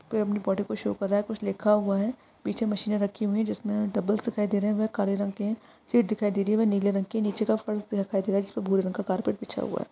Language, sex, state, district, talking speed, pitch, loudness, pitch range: Hindi, female, Maharashtra, Solapur, 315 wpm, 210 Hz, -28 LUFS, 200-215 Hz